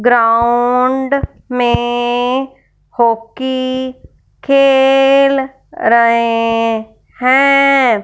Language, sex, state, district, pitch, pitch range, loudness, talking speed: Hindi, female, Punjab, Fazilka, 250 Hz, 235-265 Hz, -13 LUFS, 45 wpm